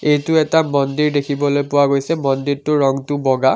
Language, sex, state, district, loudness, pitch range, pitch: Assamese, male, Assam, Kamrup Metropolitan, -17 LUFS, 140-150 Hz, 145 Hz